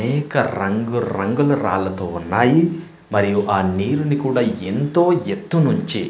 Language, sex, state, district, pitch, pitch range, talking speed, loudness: Telugu, male, Andhra Pradesh, Manyam, 125 Hz, 100-150 Hz, 110 wpm, -19 LUFS